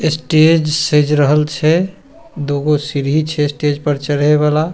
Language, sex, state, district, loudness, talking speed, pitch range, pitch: Maithili, male, Bihar, Supaul, -14 LUFS, 150 wpm, 145-160 Hz, 150 Hz